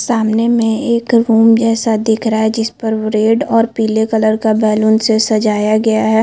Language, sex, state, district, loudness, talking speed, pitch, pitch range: Hindi, female, Chhattisgarh, Bilaspur, -13 LUFS, 190 wpm, 220 Hz, 220-225 Hz